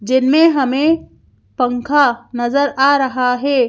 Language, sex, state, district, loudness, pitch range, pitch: Hindi, female, Madhya Pradesh, Bhopal, -15 LUFS, 250-285 Hz, 265 Hz